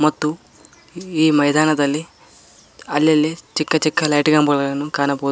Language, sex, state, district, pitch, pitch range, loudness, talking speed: Kannada, male, Karnataka, Koppal, 150 Hz, 145-155 Hz, -18 LUFS, 100 wpm